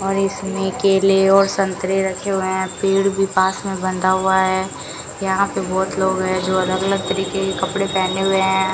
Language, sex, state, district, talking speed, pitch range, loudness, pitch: Hindi, female, Rajasthan, Bikaner, 200 wpm, 190-195 Hz, -18 LUFS, 190 Hz